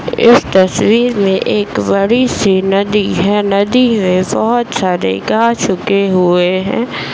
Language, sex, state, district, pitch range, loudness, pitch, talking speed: Hindi, female, Bihar, Bhagalpur, 190-230 Hz, -12 LUFS, 200 Hz, 150 wpm